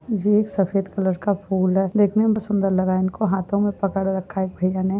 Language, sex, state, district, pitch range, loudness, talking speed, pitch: Hindi, female, Chhattisgarh, Balrampur, 190-205 Hz, -21 LUFS, 250 wpm, 195 Hz